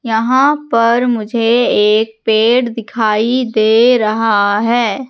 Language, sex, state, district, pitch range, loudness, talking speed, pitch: Hindi, female, Madhya Pradesh, Katni, 220-245 Hz, -13 LUFS, 105 wpm, 230 Hz